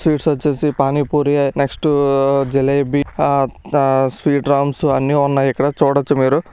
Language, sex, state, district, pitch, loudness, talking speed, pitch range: Telugu, male, Andhra Pradesh, Srikakulam, 140 Hz, -16 LUFS, 130 wpm, 135-145 Hz